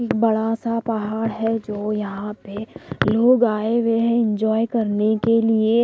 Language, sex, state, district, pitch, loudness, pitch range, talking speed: Hindi, female, Odisha, Malkangiri, 225 Hz, -20 LUFS, 215-230 Hz, 165 wpm